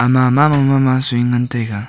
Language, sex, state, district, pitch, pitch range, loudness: Wancho, male, Arunachal Pradesh, Longding, 125 Hz, 120-135 Hz, -14 LUFS